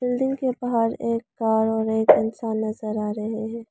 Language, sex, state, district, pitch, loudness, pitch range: Hindi, female, Arunachal Pradesh, Lower Dibang Valley, 225 Hz, -23 LUFS, 220-235 Hz